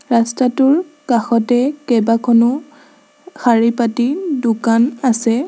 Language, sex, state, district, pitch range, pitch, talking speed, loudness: Assamese, female, Assam, Sonitpur, 230-290 Hz, 245 Hz, 65 wpm, -15 LUFS